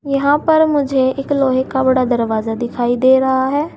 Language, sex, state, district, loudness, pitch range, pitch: Hindi, female, Uttar Pradesh, Saharanpur, -15 LUFS, 250-285 Hz, 265 Hz